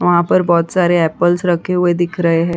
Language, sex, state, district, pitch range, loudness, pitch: Hindi, female, Uttar Pradesh, Hamirpur, 170-180 Hz, -14 LUFS, 175 Hz